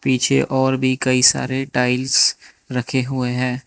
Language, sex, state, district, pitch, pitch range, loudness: Hindi, male, Manipur, Imphal West, 130 Hz, 125-130 Hz, -18 LUFS